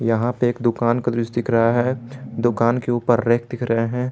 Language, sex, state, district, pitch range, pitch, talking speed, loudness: Hindi, male, Jharkhand, Garhwa, 115-120 Hz, 120 Hz, 235 wpm, -20 LUFS